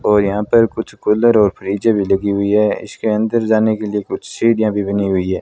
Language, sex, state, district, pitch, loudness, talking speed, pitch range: Hindi, male, Rajasthan, Bikaner, 105 Hz, -16 LUFS, 245 wpm, 100-110 Hz